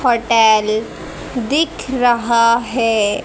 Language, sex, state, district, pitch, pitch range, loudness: Hindi, female, Haryana, Charkhi Dadri, 235 Hz, 225-245 Hz, -15 LUFS